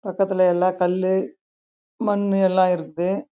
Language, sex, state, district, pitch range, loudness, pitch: Tamil, female, Karnataka, Chamarajanagar, 185-195 Hz, -21 LUFS, 190 Hz